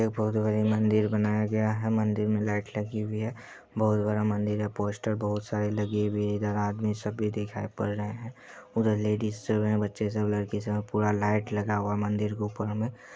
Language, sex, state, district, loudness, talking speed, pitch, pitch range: Hindi, male, Bihar, Supaul, -29 LUFS, 230 wpm, 105 Hz, 105-110 Hz